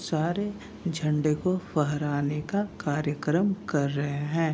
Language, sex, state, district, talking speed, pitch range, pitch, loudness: Hindi, male, Bihar, Kishanganj, 120 wpm, 145-185 Hz, 155 Hz, -28 LUFS